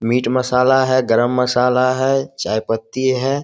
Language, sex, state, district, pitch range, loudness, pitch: Hindi, male, Bihar, Jamui, 120-130 Hz, -17 LUFS, 125 Hz